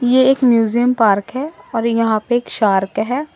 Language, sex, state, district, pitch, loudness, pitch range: Hindi, female, Assam, Sonitpur, 235 Hz, -16 LUFS, 220-250 Hz